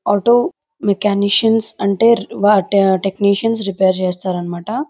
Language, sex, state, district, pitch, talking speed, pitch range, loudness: Telugu, female, Andhra Pradesh, Chittoor, 200 Hz, 100 wpm, 190-225 Hz, -15 LUFS